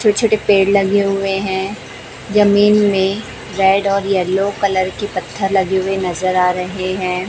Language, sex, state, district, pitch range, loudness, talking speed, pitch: Hindi, female, Chhattisgarh, Raipur, 185-200 Hz, -16 LUFS, 165 wpm, 195 Hz